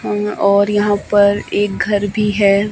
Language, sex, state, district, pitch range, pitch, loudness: Hindi, male, Himachal Pradesh, Shimla, 200-210 Hz, 205 Hz, -15 LUFS